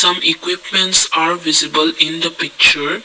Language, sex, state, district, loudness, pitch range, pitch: English, male, Assam, Kamrup Metropolitan, -13 LUFS, 160-190 Hz, 170 Hz